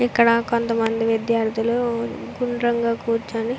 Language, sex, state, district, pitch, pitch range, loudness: Telugu, female, Andhra Pradesh, Srikakulam, 230 Hz, 225-235 Hz, -21 LUFS